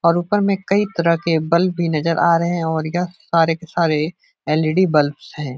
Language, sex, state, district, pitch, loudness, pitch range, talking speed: Hindi, male, Uttar Pradesh, Etah, 170 Hz, -18 LUFS, 160-175 Hz, 235 wpm